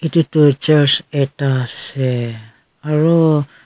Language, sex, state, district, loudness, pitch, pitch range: Nagamese, female, Nagaland, Kohima, -15 LUFS, 145 Hz, 130-155 Hz